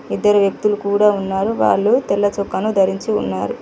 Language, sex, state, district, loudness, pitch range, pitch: Telugu, female, Telangana, Mahabubabad, -17 LUFS, 195-210 Hz, 200 Hz